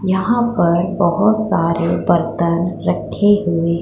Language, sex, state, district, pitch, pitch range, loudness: Hindi, female, Punjab, Pathankot, 175 Hz, 170-205 Hz, -16 LUFS